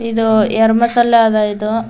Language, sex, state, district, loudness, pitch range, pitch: Kannada, female, Karnataka, Raichur, -13 LUFS, 215-230 Hz, 225 Hz